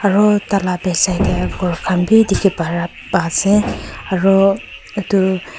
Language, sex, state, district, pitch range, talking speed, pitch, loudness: Nagamese, female, Nagaland, Kohima, 180-200 Hz, 140 wpm, 190 Hz, -16 LUFS